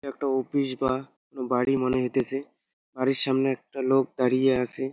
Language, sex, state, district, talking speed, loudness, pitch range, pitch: Bengali, male, West Bengal, Jalpaiguri, 145 wpm, -26 LUFS, 130-135 Hz, 130 Hz